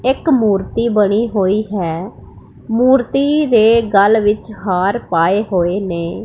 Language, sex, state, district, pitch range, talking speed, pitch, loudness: Punjabi, female, Punjab, Pathankot, 190-230 Hz, 125 wpm, 210 Hz, -15 LUFS